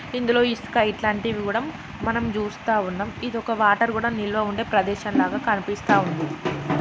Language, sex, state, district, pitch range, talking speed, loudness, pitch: Telugu, female, Telangana, Karimnagar, 205-230 Hz, 140 wpm, -23 LUFS, 215 Hz